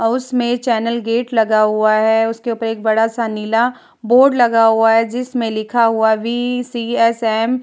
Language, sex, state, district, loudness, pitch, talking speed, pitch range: Hindi, female, Bihar, Vaishali, -15 LUFS, 230 Hz, 175 wpm, 225-240 Hz